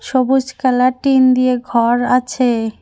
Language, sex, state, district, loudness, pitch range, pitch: Bengali, female, West Bengal, Cooch Behar, -15 LUFS, 245-260 Hz, 255 Hz